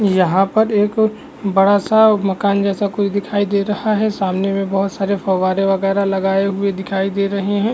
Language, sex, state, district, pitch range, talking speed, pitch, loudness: Hindi, male, Uttar Pradesh, Varanasi, 195-205 Hz, 185 wpm, 200 Hz, -17 LUFS